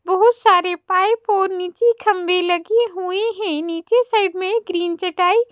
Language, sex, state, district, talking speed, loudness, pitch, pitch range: Hindi, female, Madhya Pradesh, Bhopal, 150 wpm, -18 LUFS, 380 Hz, 360-450 Hz